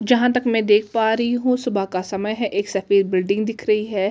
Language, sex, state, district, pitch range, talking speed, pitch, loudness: Hindi, female, Delhi, New Delhi, 200-230 Hz, 260 wpm, 215 Hz, -20 LUFS